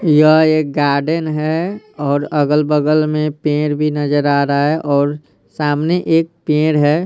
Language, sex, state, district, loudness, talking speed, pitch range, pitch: Hindi, male, Bihar, Patna, -15 LUFS, 135 wpm, 145-155 Hz, 150 Hz